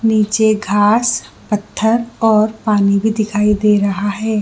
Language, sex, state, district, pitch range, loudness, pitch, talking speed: Hindi, female, Jharkhand, Jamtara, 205-220 Hz, -15 LUFS, 215 Hz, 135 wpm